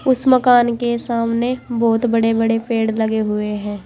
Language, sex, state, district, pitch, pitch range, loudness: Hindi, female, Uttar Pradesh, Saharanpur, 230 Hz, 220-240 Hz, -17 LUFS